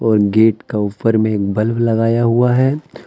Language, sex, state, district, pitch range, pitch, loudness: Hindi, male, Jharkhand, Deoghar, 105-115 Hz, 115 Hz, -15 LUFS